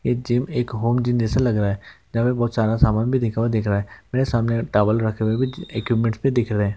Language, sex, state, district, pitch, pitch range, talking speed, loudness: Hindi, male, West Bengal, Malda, 115 Hz, 110-125 Hz, 250 wpm, -21 LUFS